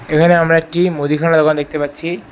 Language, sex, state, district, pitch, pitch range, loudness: Bengali, male, West Bengal, Alipurduar, 160 Hz, 150-165 Hz, -14 LUFS